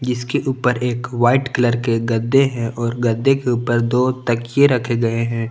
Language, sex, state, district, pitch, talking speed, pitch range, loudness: Hindi, male, Jharkhand, Palamu, 120 Hz, 185 wpm, 115-125 Hz, -18 LUFS